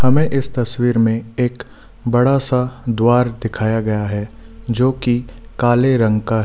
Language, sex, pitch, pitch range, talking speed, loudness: Hindi, male, 120 Hz, 115-125 Hz, 160 wpm, -17 LUFS